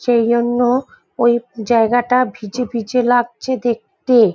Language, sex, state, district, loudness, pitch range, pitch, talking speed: Bengali, female, West Bengal, Jhargram, -17 LUFS, 235-250 Hz, 240 Hz, 95 wpm